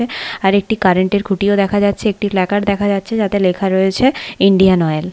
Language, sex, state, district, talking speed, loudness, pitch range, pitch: Bengali, female, West Bengal, Paschim Medinipur, 185 wpm, -15 LUFS, 190-205 Hz, 200 Hz